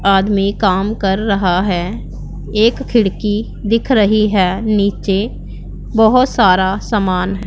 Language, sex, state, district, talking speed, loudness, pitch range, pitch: Hindi, male, Punjab, Pathankot, 110 wpm, -15 LUFS, 190-215 Hz, 200 Hz